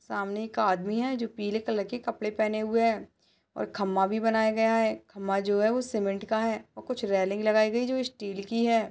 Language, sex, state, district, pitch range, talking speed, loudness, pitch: Hindi, female, Uttar Pradesh, Budaun, 200-230 Hz, 235 wpm, -28 LUFS, 215 Hz